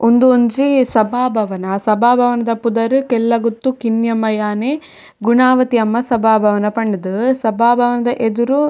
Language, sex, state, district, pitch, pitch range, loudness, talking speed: Tulu, female, Karnataka, Dakshina Kannada, 235 Hz, 220-250 Hz, -15 LUFS, 110 wpm